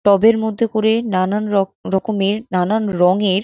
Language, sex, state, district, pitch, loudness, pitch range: Bengali, female, West Bengal, North 24 Parganas, 205 Hz, -17 LUFS, 190-220 Hz